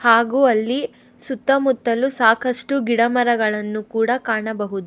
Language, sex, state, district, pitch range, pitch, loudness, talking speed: Kannada, female, Karnataka, Bangalore, 220-260 Hz, 235 Hz, -19 LUFS, 85 wpm